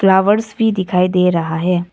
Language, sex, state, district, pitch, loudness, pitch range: Hindi, female, Arunachal Pradesh, Papum Pare, 185 Hz, -15 LUFS, 180-200 Hz